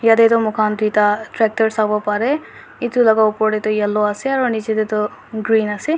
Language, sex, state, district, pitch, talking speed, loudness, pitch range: Nagamese, female, Nagaland, Dimapur, 215 Hz, 190 wpm, -17 LUFS, 210-225 Hz